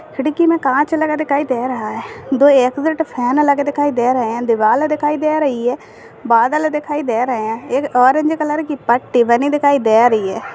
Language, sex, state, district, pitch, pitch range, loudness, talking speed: Hindi, male, Uttarakhand, Tehri Garhwal, 280 Hz, 245-300 Hz, -15 LUFS, 200 wpm